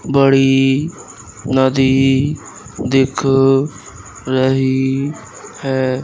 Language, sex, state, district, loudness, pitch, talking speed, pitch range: Hindi, male, Madhya Pradesh, Katni, -15 LUFS, 135 Hz, 50 wpm, 130-135 Hz